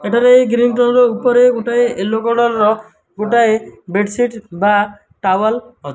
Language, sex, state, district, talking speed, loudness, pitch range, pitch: Odia, male, Odisha, Malkangiri, 130 wpm, -14 LUFS, 205-240 Hz, 230 Hz